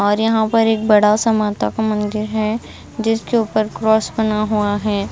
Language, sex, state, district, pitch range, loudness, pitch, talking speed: Hindi, female, Himachal Pradesh, Shimla, 210-225 Hz, -17 LUFS, 215 Hz, 190 wpm